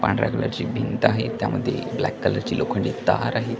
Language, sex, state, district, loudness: Marathi, male, Maharashtra, Washim, -23 LUFS